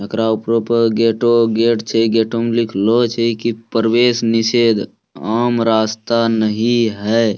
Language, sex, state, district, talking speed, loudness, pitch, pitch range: Hindi, male, Bihar, Bhagalpur, 145 wpm, -15 LUFS, 115 Hz, 110-115 Hz